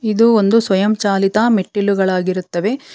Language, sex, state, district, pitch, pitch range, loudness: Kannada, female, Karnataka, Bangalore, 205 Hz, 190-225 Hz, -15 LUFS